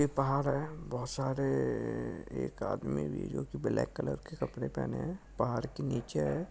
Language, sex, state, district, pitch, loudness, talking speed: Hindi, male, Maharashtra, Dhule, 125 Hz, -35 LUFS, 195 wpm